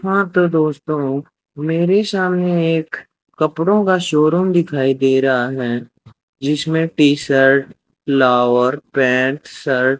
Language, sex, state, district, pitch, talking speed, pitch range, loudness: Hindi, male, Rajasthan, Bikaner, 150 Hz, 120 wpm, 135-170 Hz, -16 LUFS